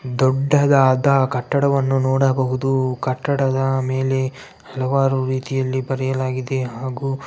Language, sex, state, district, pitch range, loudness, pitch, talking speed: Kannada, male, Karnataka, Bellary, 130-135 Hz, -19 LUFS, 130 Hz, 85 wpm